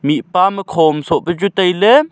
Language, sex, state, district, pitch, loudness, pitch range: Wancho, male, Arunachal Pradesh, Longding, 180 Hz, -14 LUFS, 165-195 Hz